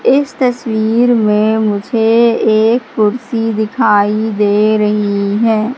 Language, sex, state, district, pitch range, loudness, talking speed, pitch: Hindi, female, Madhya Pradesh, Katni, 210-235 Hz, -13 LUFS, 105 wpm, 220 Hz